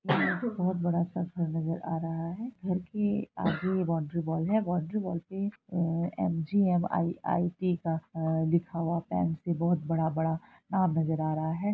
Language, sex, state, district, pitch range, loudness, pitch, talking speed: Hindi, female, Bihar, Araria, 165-185 Hz, -30 LUFS, 170 Hz, 145 wpm